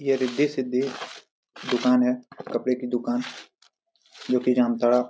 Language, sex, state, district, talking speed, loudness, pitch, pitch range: Hindi, male, Jharkhand, Jamtara, 140 wpm, -25 LUFS, 125 Hz, 125-135 Hz